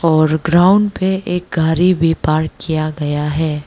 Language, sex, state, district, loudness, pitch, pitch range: Hindi, female, Arunachal Pradesh, Lower Dibang Valley, -15 LUFS, 160 Hz, 155-180 Hz